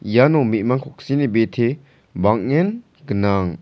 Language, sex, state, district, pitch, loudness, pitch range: Garo, male, Meghalaya, South Garo Hills, 125 Hz, -19 LUFS, 105-145 Hz